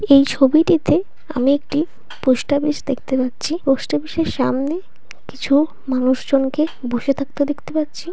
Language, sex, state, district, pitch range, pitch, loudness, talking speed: Bengali, female, West Bengal, North 24 Parganas, 270-310 Hz, 285 Hz, -19 LUFS, 140 wpm